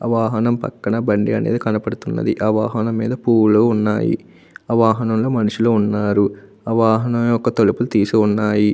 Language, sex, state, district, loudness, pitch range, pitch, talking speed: Telugu, male, Andhra Pradesh, Anantapur, -17 LUFS, 105-115 Hz, 110 Hz, 145 wpm